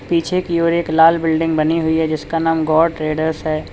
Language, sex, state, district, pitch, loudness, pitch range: Hindi, male, Uttar Pradesh, Lalitpur, 160 Hz, -16 LUFS, 160-165 Hz